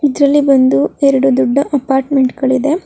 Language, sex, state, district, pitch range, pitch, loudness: Kannada, female, Karnataka, Raichur, 265-285 Hz, 275 Hz, -12 LUFS